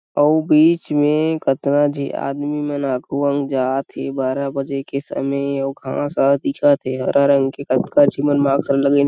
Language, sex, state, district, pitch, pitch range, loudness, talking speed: Chhattisgarhi, male, Chhattisgarh, Sarguja, 140 Hz, 135-145 Hz, -18 LUFS, 145 wpm